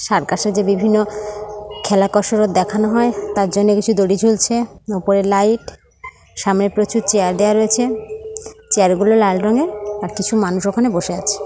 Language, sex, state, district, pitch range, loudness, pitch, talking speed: Bengali, female, West Bengal, North 24 Parganas, 200-220 Hz, -16 LUFS, 210 Hz, 150 wpm